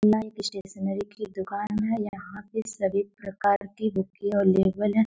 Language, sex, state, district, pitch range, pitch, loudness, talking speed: Hindi, female, Bihar, Gopalganj, 195-210 Hz, 200 Hz, -27 LUFS, 155 wpm